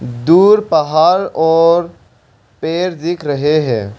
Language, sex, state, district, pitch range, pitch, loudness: Hindi, male, Arunachal Pradesh, Longding, 125-170 Hz, 160 Hz, -13 LUFS